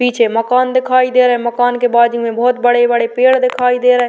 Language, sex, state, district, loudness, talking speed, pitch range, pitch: Hindi, female, Uttar Pradesh, Varanasi, -12 LUFS, 250 wpm, 240-250 Hz, 245 Hz